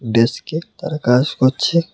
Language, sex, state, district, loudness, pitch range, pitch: Bengali, male, Tripura, West Tripura, -18 LUFS, 125-165 Hz, 140 Hz